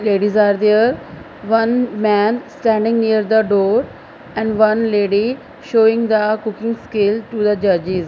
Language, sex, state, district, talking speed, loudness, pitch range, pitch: English, female, Punjab, Fazilka, 140 wpm, -16 LUFS, 205-225 Hz, 215 Hz